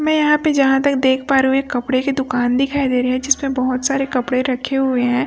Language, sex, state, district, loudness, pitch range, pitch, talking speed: Hindi, female, Chhattisgarh, Raipur, -17 LUFS, 255-275 Hz, 265 Hz, 275 wpm